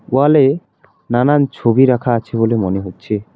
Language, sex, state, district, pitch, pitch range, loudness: Bengali, male, West Bengal, Alipurduar, 120 Hz, 115-140 Hz, -15 LUFS